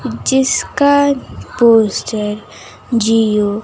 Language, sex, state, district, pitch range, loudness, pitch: Hindi, female, Bihar, West Champaran, 210-265 Hz, -14 LUFS, 225 Hz